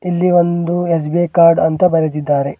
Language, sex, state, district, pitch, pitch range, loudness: Kannada, male, Karnataka, Bidar, 170 Hz, 155-175 Hz, -14 LUFS